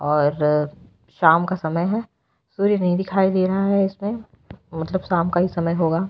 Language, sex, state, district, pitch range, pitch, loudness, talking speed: Hindi, female, Bihar, Vaishali, 160-195 Hz, 180 Hz, -21 LUFS, 165 wpm